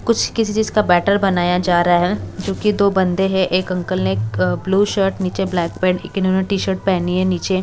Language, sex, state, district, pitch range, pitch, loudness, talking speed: Hindi, female, Bihar, West Champaran, 180-195 Hz, 185 Hz, -18 LUFS, 220 wpm